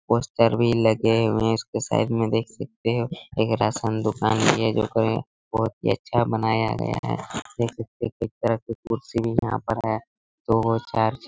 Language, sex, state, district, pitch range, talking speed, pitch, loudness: Hindi, male, Chhattisgarh, Raigarh, 110-115 Hz, 180 wpm, 115 Hz, -24 LUFS